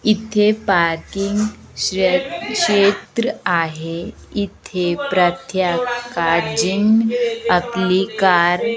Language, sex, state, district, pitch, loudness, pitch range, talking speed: Marathi, female, Maharashtra, Aurangabad, 195 Hz, -18 LUFS, 175-215 Hz, 75 wpm